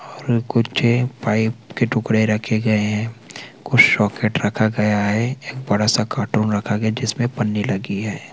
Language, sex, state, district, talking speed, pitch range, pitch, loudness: Hindi, male, Chhattisgarh, Bilaspur, 175 wpm, 105-120 Hz, 110 Hz, -19 LUFS